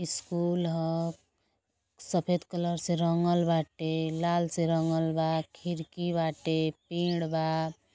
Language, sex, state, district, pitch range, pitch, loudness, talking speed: Bhojpuri, female, Uttar Pradesh, Gorakhpur, 160-175 Hz, 165 Hz, -30 LUFS, 115 wpm